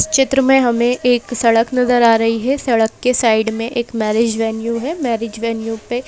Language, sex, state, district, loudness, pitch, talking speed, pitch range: Hindi, female, Madhya Pradesh, Bhopal, -16 LUFS, 235 Hz, 195 wpm, 225-250 Hz